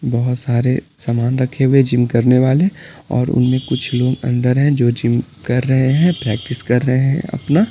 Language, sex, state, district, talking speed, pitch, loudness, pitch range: Hindi, male, Bihar, Patna, 185 wpm, 125 Hz, -16 LUFS, 125-135 Hz